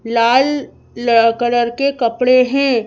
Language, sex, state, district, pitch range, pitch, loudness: Hindi, female, Madhya Pradesh, Bhopal, 235-265 Hz, 240 Hz, -14 LUFS